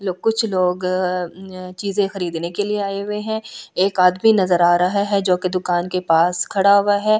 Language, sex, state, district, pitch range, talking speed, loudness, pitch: Hindi, female, Delhi, New Delhi, 180-205 Hz, 190 wpm, -19 LUFS, 185 Hz